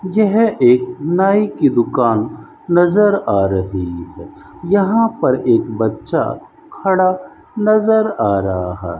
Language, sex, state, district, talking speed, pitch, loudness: Hindi, male, Rajasthan, Bikaner, 120 wpm, 185 Hz, -15 LUFS